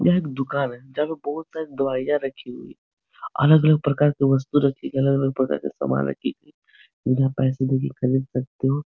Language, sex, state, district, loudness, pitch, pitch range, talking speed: Hindi, male, Uttar Pradesh, Etah, -22 LUFS, 135 Hz, 130-145 Hz, 225 wpm